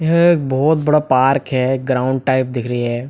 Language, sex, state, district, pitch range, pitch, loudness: Hindi, male, Jharkhand, Jamtara, 130-150 Hz, 130 Hz, -16 LUFS